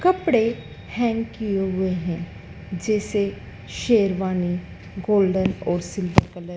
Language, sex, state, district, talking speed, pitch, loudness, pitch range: Hindi, female, Madhya Pradesh, Dhar, 110 wpm, 190 Hz, -23 LUFS, 180-220 Hz